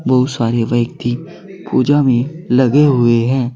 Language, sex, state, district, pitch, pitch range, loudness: Hindi, male, Uttar Pradesh, Saharanpur, 130 Hz, 120-145 Hz, -14 LUFS